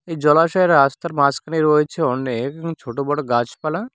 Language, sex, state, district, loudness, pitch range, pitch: Bengali, male, West Bengal, Cooch Behar, -18 LUFS, 140-165 Hz, 150 Hz